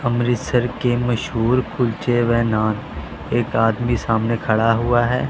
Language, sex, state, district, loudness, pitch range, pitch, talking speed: Hindi, male, Punjab, Pathankot, -19 LUFS, 115-120 Hz, 120 Hz, 135 wpm